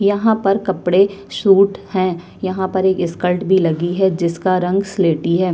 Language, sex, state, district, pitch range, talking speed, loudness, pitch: Hindi, female, Chhattisgarh, Kabirdham, 175-195 Hz, 160 wpm, -17 LUFS, 185 Hz